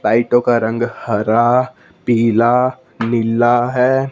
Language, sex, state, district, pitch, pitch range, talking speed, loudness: Hindi, male, Punjab, Fazilka, 120 Hz, 115-125 Hz, 100 wpm, -15 LUFS